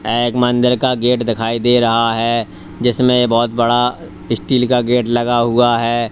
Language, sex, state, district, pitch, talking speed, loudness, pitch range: Hindi, male, Uttar Pradesh, Lalitpur, 120 Hz, 175 wpm, -15 LUFS, 115-125 Hz